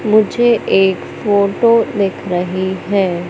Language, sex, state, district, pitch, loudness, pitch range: Hindi, male, Madhya Pradesh, Katni, 195 Hz, -15 LUFS, 185-215 Hz